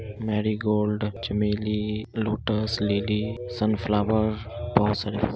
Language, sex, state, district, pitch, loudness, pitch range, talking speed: Hindi, male, Bihar, Muzaffarpur, 105 Hz, -26 LUFS, 105-110 Hz, 100 wpm